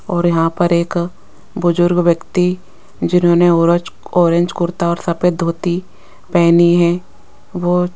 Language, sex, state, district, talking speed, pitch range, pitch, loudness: Hindi, female, Rajasthan, Jaipur, 120 wpm, 170-180 Hz, 175 Hz, -15 LUFS